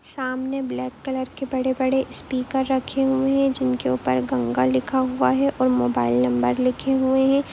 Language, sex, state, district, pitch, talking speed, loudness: Hindi, female, Jharkhand, Jamtara, 255 Hz, 165 wpm, -22 LUFS